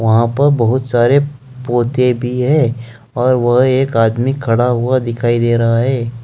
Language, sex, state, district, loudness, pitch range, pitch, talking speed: Hindi, male, Jharkhand, Deoghar, -14 LUFS, 120-130 Hz, 125 Hz, 165 wpm